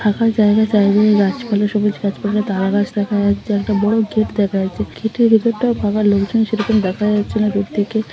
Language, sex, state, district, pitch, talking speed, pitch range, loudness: Bengali, female, West Bengal, Malda, 210 Hz, 185 wpm, 205-220 Hz, -16 LUFS